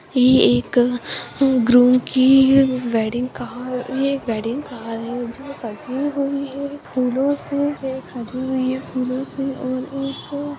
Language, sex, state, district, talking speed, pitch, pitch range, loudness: Hindi, female, Bihar, Jahanabad, 95 wpm, 260 Hz, 245-275 Hz, -20 LUFS